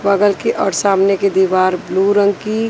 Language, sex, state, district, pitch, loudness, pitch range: Hindi, female, Maharashtra, Washim, 200 Hz, -15 LUFS, 190-205 Hz